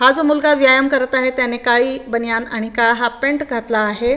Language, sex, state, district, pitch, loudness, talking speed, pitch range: Marathi, female, Maharashtra, Aurangabad, 250 Hz, -16 LUFS, 215 wpm, 235-265 Hz